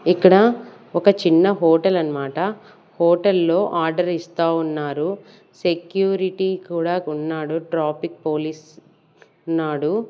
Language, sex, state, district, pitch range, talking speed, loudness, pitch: Telugu, female, Andhra Pradesh, Sri Satya Sai, 160-190 Hz, 95 wpm, -20 LUFS, 170 Hz